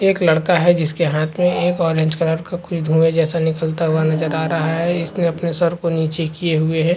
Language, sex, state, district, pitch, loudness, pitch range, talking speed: Hindi, male, Chhattisgarh, Bastar, 165 Hz, -18 LUFS, 160-170 Hz, 250 wpm